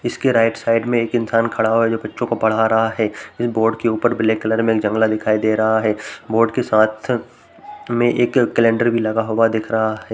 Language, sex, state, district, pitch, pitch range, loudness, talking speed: Hindi, male, Uttar Pradesh, Jalaun, 115 Hz, 110-120 Hz, -18 LUFS, 230 wpm